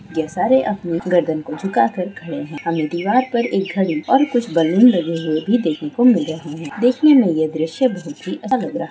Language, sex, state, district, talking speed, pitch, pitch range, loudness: Hindi, female, Chhattisgarh, Korba, 230 wpm, 180 Hz, 160-240 Hz, -18 LUFS